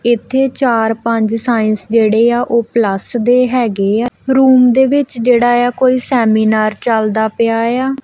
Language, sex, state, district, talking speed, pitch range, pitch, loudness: Punjabi, female, Punjab, Kapurthala, 155 wpm, 220-250 Hz, 235 Hz, -13 LUFS